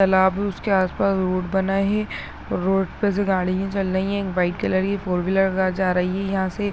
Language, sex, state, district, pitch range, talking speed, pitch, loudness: Hindi, male, Chhattisgarh, Balrampur, 185-195 Hz, 240 wpm, 190 Hz, -22 LUFS